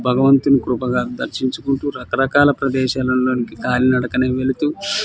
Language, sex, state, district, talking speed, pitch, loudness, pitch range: Telugu, male, Telangana, Nalgonda, 120 wpm, 130 Hz, -18 LUFS, 125-140 Hz